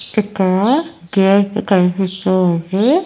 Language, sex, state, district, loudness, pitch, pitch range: Telugu, female, Andhra Pradesh, Annamaya, -15 LUFS, 195 Hz, 185-215 Hz